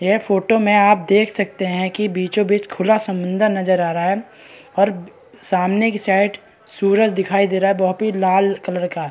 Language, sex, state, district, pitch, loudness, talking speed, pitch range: Hindi, female, Bihar, East Champaran, 195 Hz, -18 LUFS, 190 wpm, 185-210 Hz